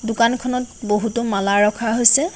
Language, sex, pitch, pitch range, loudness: Assamese, female, 230 Hz, 210-250 Hz, -18 LUFS